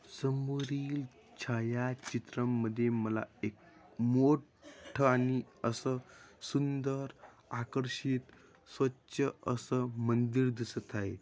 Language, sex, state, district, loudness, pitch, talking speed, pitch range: Marathi, male, Maharashtra, Dhule, -35 LUFS, 125 Hz, 75 wpm, 120-135 Hz